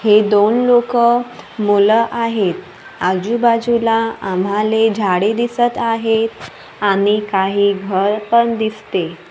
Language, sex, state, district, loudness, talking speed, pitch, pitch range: Marathi, female, Maharashtra, Gondia, -15 LUFS, 95 wpm, 215 Hz, 200-230 Hz